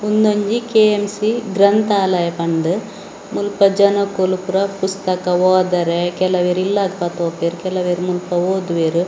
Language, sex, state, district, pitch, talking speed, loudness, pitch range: Tulu, female, Karnataka, Dakshina Kannada, 185 Hz, 100 wpm, -17 LUFS, 180-200 Hz